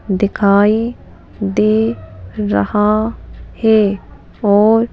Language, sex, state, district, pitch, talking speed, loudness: Hindi, female, Madhya Pradesh, Bhopal, 200 Hz, 60 wpm, -15 LUFS